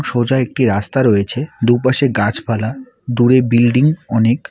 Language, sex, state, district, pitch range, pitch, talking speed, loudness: Bengali, male, West Bengal, Alipurduar, 115-130 Hz, 120 Hz, 120 wpm, -15 LUFS